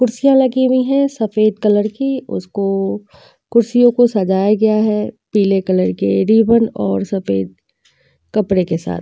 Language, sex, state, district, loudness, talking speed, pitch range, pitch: Hindi, female, Uttar Pradesh, Jyotiba Phule Nagar, -15 LUFS, 145 wpm, 190-240 Hz, 210 Hz